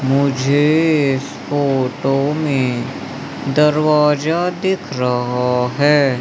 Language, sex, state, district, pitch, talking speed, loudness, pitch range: Hindi, male, Madhya Pradesh, Umaria, 140 Hz, 75 wpm, -16 LUFS, 130-150 Hz